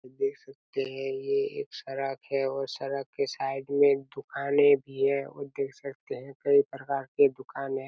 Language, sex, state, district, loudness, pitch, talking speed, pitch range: Hindi, male, Chhattisgarh, Raigarh, -29 LUFS, 140 Hz, 180 wpm, 135-140 Hz